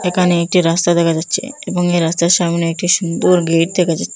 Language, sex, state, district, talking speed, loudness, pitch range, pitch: Bengali, female, Assam, Hailakandi, 200 wpm, -15 LUFS, 170-180 Hz, 175 Hz